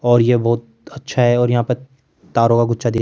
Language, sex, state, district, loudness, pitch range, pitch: Hindi, male, Rajasthan, Jaipur, -17 LUFS, 115-125 Hz, 120 Hz